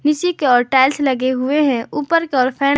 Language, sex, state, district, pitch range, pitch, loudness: Hindi, female, Jharkhand, Garhwa, 255-295 Hz, 275 Hz, -16 LUFS